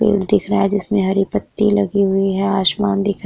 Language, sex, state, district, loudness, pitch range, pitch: Hindi, female, Bihar, Vaishali, -16 LUFS, 195-205 Hz, 200 Hz